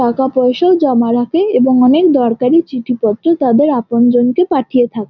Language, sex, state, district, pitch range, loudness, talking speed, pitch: Bengali, female, West Bengal, Jhargram, 240-300 Hz, -12 LUFS, 165 wpm, 250 Hz